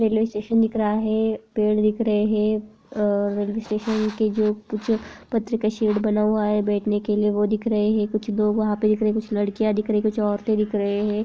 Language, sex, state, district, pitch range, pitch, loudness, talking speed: Hindi, female, Jharkhand, Jamtara, 210-215 Hz, 215 Hz, -22 LUFS, 235 wpm